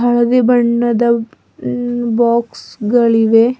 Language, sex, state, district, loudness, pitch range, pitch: Kannada, female, Karnataka, Bidar, -14 LUFS, 230-240 Hz, 235 Hz